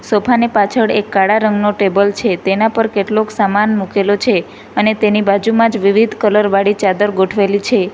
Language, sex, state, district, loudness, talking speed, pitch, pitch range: Gujarati, female, Gujarat, Valsad, -13 LUFS, 175 wpm, 210 Hz, 200-215 Hz